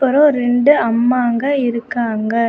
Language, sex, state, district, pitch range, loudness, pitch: Tamil, female, Tamil Nadu, Kanyakumari, 230-270 Hz, -15 LUFS, 245 Hz